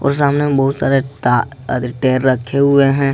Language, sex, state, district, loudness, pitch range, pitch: Hindi, male, Jharkhand, Ranchi, -15 LUFS, 130-140 Hz, 135 Hz